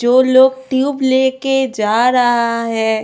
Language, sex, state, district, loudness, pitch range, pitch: Hindi, female, Goa, North and South Goa, -14 LUFS, 230-260 Hz, 255 Hz